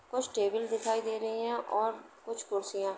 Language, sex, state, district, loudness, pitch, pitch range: Hindi, female, Uttar Pradesh, Jalaun, -33 LUFS, 225 Hz, 205-225 Hz